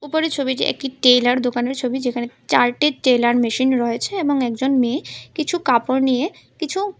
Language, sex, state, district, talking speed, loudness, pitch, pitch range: Bengali, female, Tripura, West Tripura, 155 wpm, -19 LUFS, 260 Hz, 245-295 Hz